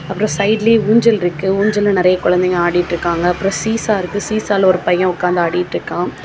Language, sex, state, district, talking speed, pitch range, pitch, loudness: Tamil, female, Tamil Nadu, Kanyakumari, 165 wpm, 175-210 Hz, 190 Hz, -15 LUFS